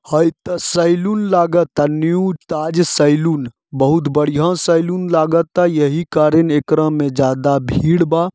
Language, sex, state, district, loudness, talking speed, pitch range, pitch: Bhojpuri, male, Jharkhand, Sahebganj, -15 LUFS, 130 wpm, 150-175 Hz, 160 Hz